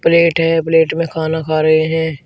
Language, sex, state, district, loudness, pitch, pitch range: Hindi, male, Uttar Pradesh, Shamli, -14 LUFS, 160 Hz, 160-165 Hz